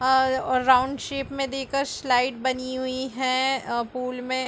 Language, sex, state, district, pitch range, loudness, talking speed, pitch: Hindi, female, Chhattisgarh, Bilaspur, 255-270 Hz, -24 LUFS, 175 wpm, 260 Hz